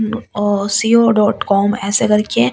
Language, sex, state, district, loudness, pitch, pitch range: Hindi, female, Delhi, New Delhi, -14 LUFS, 210 Hz, 200-220 Hz